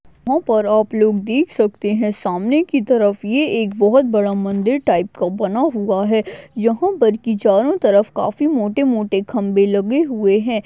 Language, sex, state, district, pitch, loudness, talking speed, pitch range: Hindi, female, Maharashtra, Aurangabad, 215 Hz, -17 LUFS, 170 wpm, 205-260 Hz